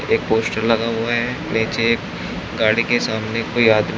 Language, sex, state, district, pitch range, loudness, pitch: Hindi, male, Uttar Pradesh, Shamli, 110-115 Hz, -19 LUFS, 115 Hz